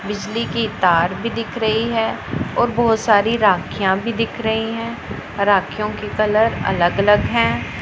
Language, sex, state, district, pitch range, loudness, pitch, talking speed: Hindi, female, Punjab, Pathankot, 200-230 Hz, -18 LUFS, 215 Hz, 160 wpm